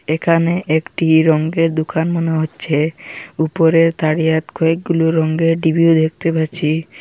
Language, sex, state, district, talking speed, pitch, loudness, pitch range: Bengali, female, Assam, Hailakandi, 110 wpm, 160 Hz, -16 LUFS, 160-165 Hz